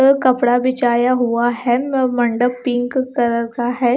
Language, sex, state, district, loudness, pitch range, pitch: Hindi, female, Punjab, Kapurthala, -17 LUFS, 240-255 Hz, 245 Hz